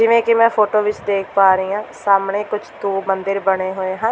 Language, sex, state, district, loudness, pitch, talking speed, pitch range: Punjabi, female, Delhi, New Delhi, -17 LUFS, 200 Hz, 230 wpm, 195-210 Hz